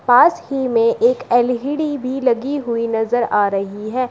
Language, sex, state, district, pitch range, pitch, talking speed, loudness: Hindi, female, Uttar Pradesh, Shamli, 230-270 Hz, 245 Hz, 175 wpm, -18 LUFS